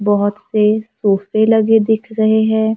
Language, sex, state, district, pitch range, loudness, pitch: Hindi, female, Maharashtra, Gondia, 210-220 Hz, -15 LUFS, 220 Hz